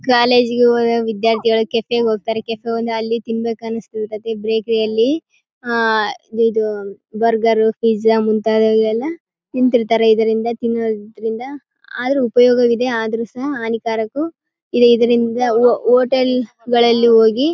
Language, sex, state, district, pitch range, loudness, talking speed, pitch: Kannada, female, Karnataka, Bellary, 225-245 Hz, -16 LUFS, 105 wpm, 230 Hz